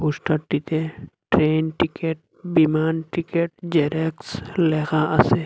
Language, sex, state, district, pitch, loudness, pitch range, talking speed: Bengali, male, Assam, Hailakandi, 160 Hz, -22 LUFS, 155-165 Hz, 90 wpm